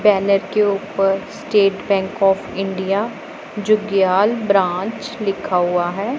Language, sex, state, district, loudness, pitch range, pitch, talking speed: Hindi, female, Punjab, Pathankot, -18 LUFS, 195-210 Hz, 200 Hz, 115 wpm